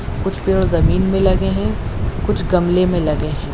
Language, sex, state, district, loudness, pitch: Hindi, female, Bihar, Saran, -17 LUFS, 150 Hz